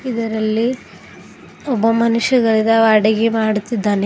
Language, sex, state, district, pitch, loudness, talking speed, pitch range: Kannada, female, Karnataka, Bidar, 225 Hz, -16 LUFS, 90 wpm, 220-230 Hz